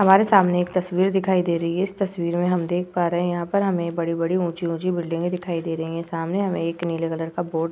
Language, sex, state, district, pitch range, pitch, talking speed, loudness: Hindi, female, Uttar Pradesh, Etah, 170-185 Hz, 175 Hz, 265 wpm, -23 LUFS